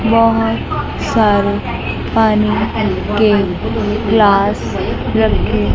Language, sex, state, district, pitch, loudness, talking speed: Hindi, female, Chandigarh, Chandigarh, 205 Hz, -15 LUFS, 60 wpm